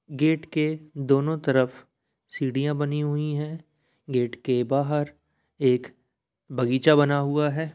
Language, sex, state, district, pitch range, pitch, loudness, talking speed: Hindi, male, Bihar, Samastipur, 130-150 Hz, 145 Hz, -25 LUFS, 125 wpm